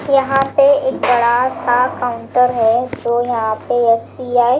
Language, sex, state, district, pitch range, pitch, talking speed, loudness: Hindi, female, Delhi, New Delhi, 235-265 Hz, 245 Hz, 155 wpm, -15 LUFS